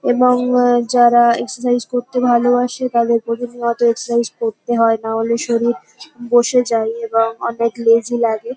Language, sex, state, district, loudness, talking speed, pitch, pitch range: Bengali, female, West Bengal, North 24 Parganas, -16 LUFS, 135 wpm, 235 Hz, 230-245 Hz